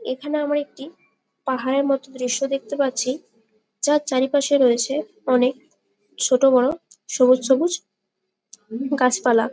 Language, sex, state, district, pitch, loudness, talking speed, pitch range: Bengali, female, West Bengal, Malda, 265 Hz, -21 LUFS, 120 wpm, 250-285 Hz